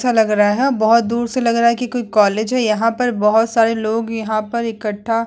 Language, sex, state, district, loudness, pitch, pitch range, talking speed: Hindi, female, Uttar Pradesh, Hamirpur, -16 LUFS, 225 Hz, 215-235 Hz, 260 wpm